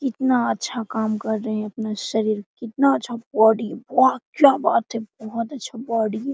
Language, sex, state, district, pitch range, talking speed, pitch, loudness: Hindi, female, Jharkhand, Sahebganj, 220-260 Hz, 180 wpm, 230 Hz, -22 LUFS